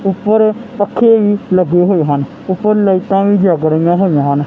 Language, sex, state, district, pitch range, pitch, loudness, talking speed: Punjabi, male, Punjab, Kapurthala, 175-205 Hz, 190 Hz, -12 LUFS, 175 wpm